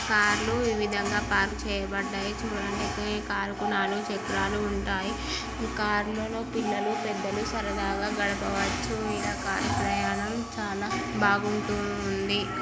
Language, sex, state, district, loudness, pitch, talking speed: Telugu, female, Andhra Pradesh, Guntur, -28 LUFS, 205 Hz, 95 wpm